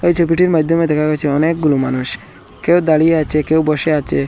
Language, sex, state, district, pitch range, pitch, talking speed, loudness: Bengali, male, Assam, Hailakandi, 150-165 Hz, 155 Hz, 180 wpm, -15 LUFS